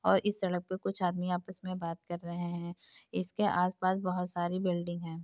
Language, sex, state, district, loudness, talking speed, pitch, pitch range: Hindi, female, Uttar Pradesh, Etah, -34 LUFS, 215 wpm, 180 Hz, 175-185 Hz